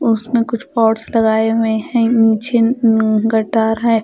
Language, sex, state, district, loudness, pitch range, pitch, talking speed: Hindi, female, Punjab, Fazilka, -15 LUFS, 220-235 Hz, 225 Hz, 135 wpm